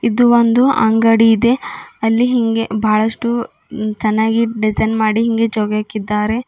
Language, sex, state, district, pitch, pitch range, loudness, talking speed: Kannada, female, Karnataka, Bidar, 225 Hz, 215-235 Hz, -15 LUFS, 110 wpm